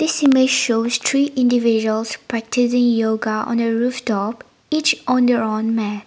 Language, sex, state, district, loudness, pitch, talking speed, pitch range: English, female, Nagaland, Dimapur, -18 LUFS, 235 Hz, 150 wpm, 220-255 Hz